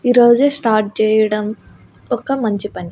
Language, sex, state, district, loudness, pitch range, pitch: Telugu, female, Andhra Pradesh, Annamaya, -16 LUFS, 210-245 Hz, 220 Hz